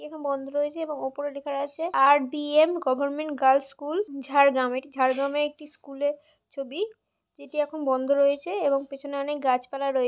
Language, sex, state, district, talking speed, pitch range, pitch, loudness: Bengali, female, West Bengal, Jhargram, 155 wpm, 275-300 Hz, 285 Hz, -26 LUFS